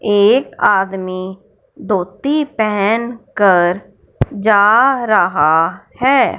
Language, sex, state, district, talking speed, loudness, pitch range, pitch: Hindi, male, Punjab, Fazilka, 75 wpm, -14 LUFS, 190-240 Hz, 205 Hz